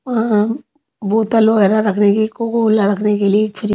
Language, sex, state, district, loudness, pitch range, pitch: Hindi, female, Haryana, Rohtak, -15 LUFS, 210-225 Hz, 215 Hz